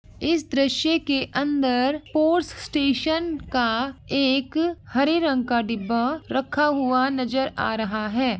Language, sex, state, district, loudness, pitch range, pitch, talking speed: Hindi, female, Uttar Pradesh, Ghazipur, -23 LUFS, 250-305 Hz, 270 Hz, 130 wpm